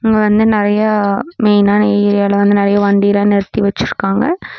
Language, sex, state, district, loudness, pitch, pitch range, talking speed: Tamil, female, Tamil Nadu, Namakkal, -13 LUFS, 205 Hz, 200-215 Hz, 130 wpm